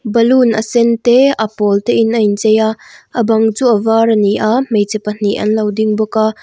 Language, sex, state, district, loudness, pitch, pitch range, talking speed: Mizo, female, Mizoram, Aizawl, -13 LUFS, 220 Hz, 215-230 Hz, 250 wpm